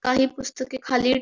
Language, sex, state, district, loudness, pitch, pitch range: Marathi, female, Maharashtra, Pune, -24 LUFS, 260 Hz, 255-265 Hz